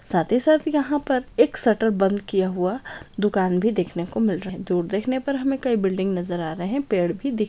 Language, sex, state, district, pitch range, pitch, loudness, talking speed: Hindi, female, Maharashtra, Pune, 185-260 Hz, 205 Hz, -21 LUFS, 250 wpm